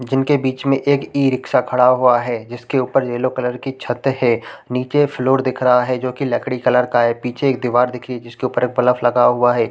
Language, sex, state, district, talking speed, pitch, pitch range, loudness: Hindi, male, Chhattisgarh, Raigarh, 230 wpm, 125 Hz, 120-130 Hz, -17 LUFS